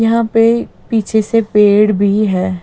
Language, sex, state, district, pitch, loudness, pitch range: Hindi, female, Bihar, West Champaran, 215 Hz, -13 LUFS, 205-225 Hz